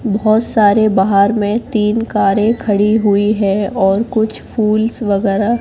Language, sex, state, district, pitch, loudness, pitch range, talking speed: Hindi, female, Madhya Pradesh, Katni, 210 Hz, -14 LUFS, 200-220 Hz, 140 wpm